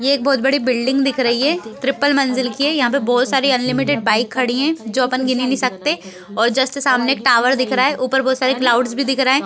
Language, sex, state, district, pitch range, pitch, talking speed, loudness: Hindi, female, Bihar, Begusarai, 250-275 Hz, 260 Hz, 265 wpm, -17 LUFS